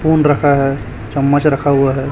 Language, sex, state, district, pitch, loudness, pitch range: Hindi, male, Chhattisgarh, Raipur, 140 Hz, -14 LUFS, 135-145 Hz